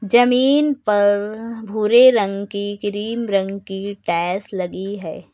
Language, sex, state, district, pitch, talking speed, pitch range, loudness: Hindi, male, Uttar Pradesh, Lucknow, 205 Hz, 125 wpm, 195-230 Hz, -18 LUFS